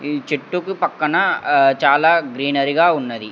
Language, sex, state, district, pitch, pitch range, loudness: Telugu, male, Andhra Pradesh, Sri Satya Sai, 140 Hz, 135-165 Hz, -17 LUFS